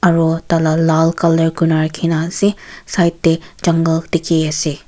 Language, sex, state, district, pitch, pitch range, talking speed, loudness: Nagamese, female, Nagaland, Kohima, 165 Hz, 160-170 Hz, 160 wpm, -15 LUFS